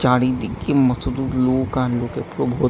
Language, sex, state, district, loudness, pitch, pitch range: Bengali, male, West Bengal, Jalpaiguri, -20 LUFS, 130 Hz, 125-130 Hz